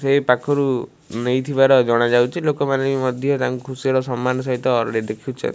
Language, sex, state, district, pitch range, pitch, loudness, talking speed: Odia, male, Odisha, Malkangiri, 125-135 Hz, 130 Hz, -19 LUFS, 150 wpm